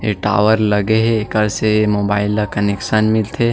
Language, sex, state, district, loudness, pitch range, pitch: Chhattisgarhi, male, Chhattisgarh, Sarguja, -16 LUFS, 105-110 Hz, 105 Hz